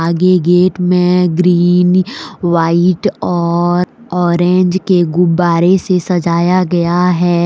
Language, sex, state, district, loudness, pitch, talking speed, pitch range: Hindi, female, Jharkhand, Deoghar, -12 LUFS, 180 Hz, 105 wpm, 175-180 Hz